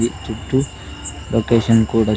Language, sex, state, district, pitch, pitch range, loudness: Telugu, male, Andhra Pradesh, Sri Satya Sai, 110 Hz, 95-115 Hz, -18 LUFS